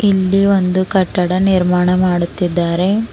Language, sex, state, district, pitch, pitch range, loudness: Kannada, female, Karnataka, Bidar, 185 Hz, 180-195 Hz, -14 LUFS